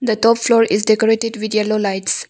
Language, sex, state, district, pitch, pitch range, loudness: English, female, Arunachal Pradesh, Longding, 220 Hz, 215-230 Hz, -16 LUFS